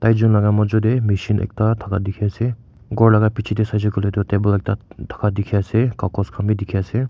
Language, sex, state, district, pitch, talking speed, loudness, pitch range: Nagamese, male, Nagaland, Kohima, 105 Hz, 185 wpm, -19 LUFS, 100-110 Hz